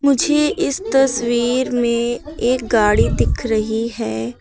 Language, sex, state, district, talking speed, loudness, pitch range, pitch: Hindi, female, Uttar Pradesh, Lucknow, 125 wpm, -18 LUFS, 225-270 Hz, 240 Hz